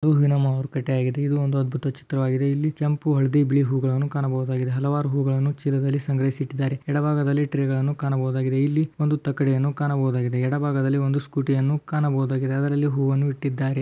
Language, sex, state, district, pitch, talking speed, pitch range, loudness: Kannada, male, Karnataka, Belgaum, 140 Hz, 165 wpm, 135-145 Hz, -23 LUFS